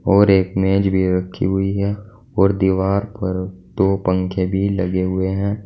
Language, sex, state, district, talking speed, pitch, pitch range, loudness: Hindi, male, Uttar Pradesh, Saharanpur, 170 wpm, 95 Hz, 95-100 Hz, -19 LUFS